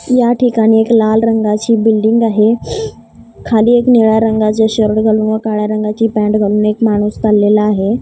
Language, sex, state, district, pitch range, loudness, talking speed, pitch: Marathi, female, Maharashtra, Gondia, 215-225 Hz, -12 LUFS, 165 wpm, 220 Hz